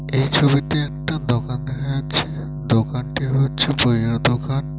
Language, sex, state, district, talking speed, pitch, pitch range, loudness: Bengali, male, West Bengal, Purulia, 115 wpm, 140 Hz, 130-145 Hz, -19 LUFS